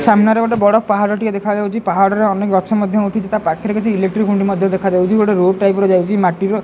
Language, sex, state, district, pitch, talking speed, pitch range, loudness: Odia, male, Odisha, Khordha, 205 Hz, 210 wpm, 195-215 Hz, -15 LUFS